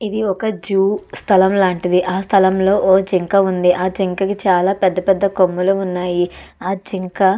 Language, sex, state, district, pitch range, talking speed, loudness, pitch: Telugu, female, Andhra Pradesh, Chittoor, 185-195 Hz, 155 wpm, -16 LUFS, 190 Hz